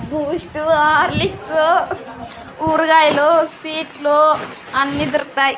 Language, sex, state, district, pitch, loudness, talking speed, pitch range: Telugu, female, Andhra Pradesh, Sri Satya Sai, 305 Hz, -16 LUFS, 65 wpm, 295-320 Hz